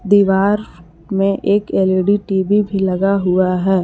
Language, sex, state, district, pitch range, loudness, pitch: Hindi, female, Jharkhand, Palamu, 185-200 Hz, -16 LUFS, 195 Hz